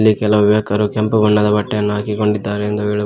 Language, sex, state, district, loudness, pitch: Kannada, male, Karnataka, Koppal, -16 LUFS, 105 Hz